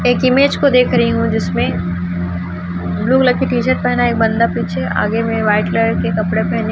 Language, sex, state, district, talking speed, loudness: Hindi, female, Chhattisgarh, Raipur, 215 wpm, -15 LUFS